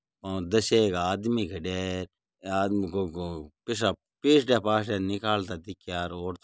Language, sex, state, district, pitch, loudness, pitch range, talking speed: Marwari, male, Rajasthan, Nagaur, 95 Hz, -28 LUFS, 90-110 Hz, 160 wpm